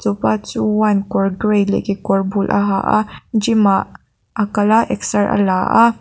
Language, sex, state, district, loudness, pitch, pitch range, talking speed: Mizo, female, Mizoram, Aizawl, -16 LUFS, 205 Hz, 195-215 Hz, 180 wpm